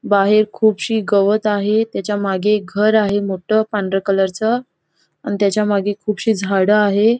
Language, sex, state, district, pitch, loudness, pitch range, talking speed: Marathi, female, Goa, North and South Goa, 205 Hz, -17 LUFS, 200-215 Hz, 150 wpm